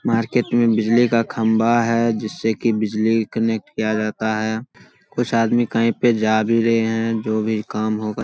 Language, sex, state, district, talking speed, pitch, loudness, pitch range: Hindi, male, Bihar, Saharsa, 190 wpm, 115 Hz, -19 LUFS, 110-115 Hz